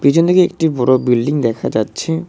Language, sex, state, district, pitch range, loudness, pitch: Bengali, male, West Bengal, Cooch Behar, 125-165 Hz, -15 LUFS, 145 Hz